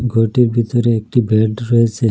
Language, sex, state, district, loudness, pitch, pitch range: Bengali, male, Assam, Hailakandi, -15 LUFS, 115 Hz, 115-120 Hz